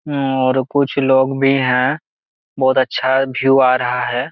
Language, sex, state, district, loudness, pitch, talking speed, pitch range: Hindi, male, Jharkhand, Jamtara, -16 LUFS, 130 Hz, 140 wpm, 130-135 Hz